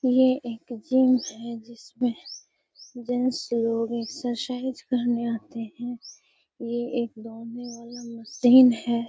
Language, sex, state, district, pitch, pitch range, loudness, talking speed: Hindi, female, Bihar, Gaya, 240 Hz, 230-250 Hz, -25 LUFS, 110 wpm